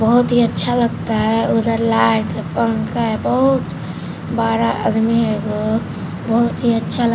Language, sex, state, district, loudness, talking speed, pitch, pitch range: Hindi, female, Bihar, Patna, -17 LUFS, 125 wpm, 225 Hz, 215-230 Hz